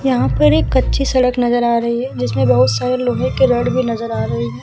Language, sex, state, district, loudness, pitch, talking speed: Hindi, female, Bihar, Vaishali, -16 LUFS, 135 Hz, 260 wpm